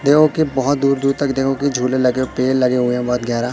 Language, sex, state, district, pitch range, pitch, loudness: Hindi, male, Madhya Pradesh, Katni, 125-140 Hz, 130 Hz, -17 LUFS